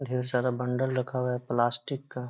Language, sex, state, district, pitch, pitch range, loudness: Hindi, male, Bihar, Jamui, 125 Hz, 125-130 Hz, -29 LUFS